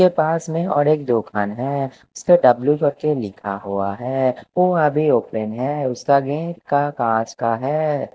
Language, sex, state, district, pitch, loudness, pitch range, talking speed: Hindi, male, Himachal Pradesh, Shimla, 140 Hz, -20 LUFS, 115-155 Hz, 175 wpm